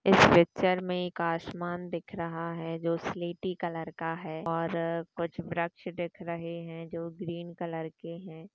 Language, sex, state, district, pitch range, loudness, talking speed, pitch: Hindi, female, Maharashtra, Chandrapur, 165-175 Hz, -31 LUFS, 160 wpm, 170 Hz